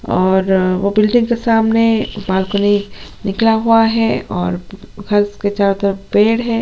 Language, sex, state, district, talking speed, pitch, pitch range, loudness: Hindi, female, Chhattisgarh, Sukma, 145 wpm, 205 Hz, 195-225 Hz, -15 LUFS